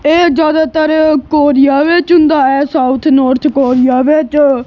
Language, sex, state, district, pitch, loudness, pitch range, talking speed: Punjabi, female, Punjab, Kapurthala, 295 Hz, -10 LUFS, 270-310 Hz, 130 wpm